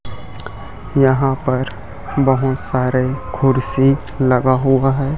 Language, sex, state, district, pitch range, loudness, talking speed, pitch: Hindi, male, Chhattisgarh, Raipur, 115-135 Hz, -17 LUFS, 95 wpm, 130 Hz